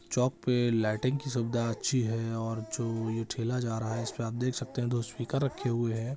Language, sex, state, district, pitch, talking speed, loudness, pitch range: Hindi, male, Bihar, Jahanabad, 120 Hz, 245 wpm, -31 LUFS, 115-125 Hz